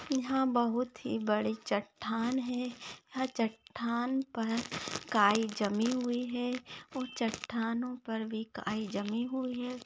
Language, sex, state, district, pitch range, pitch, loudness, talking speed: Hindi, female, Maharashtra, Aurangabad, 220-250 Hz, 235 Hz, -34 LUFS, 130 wpm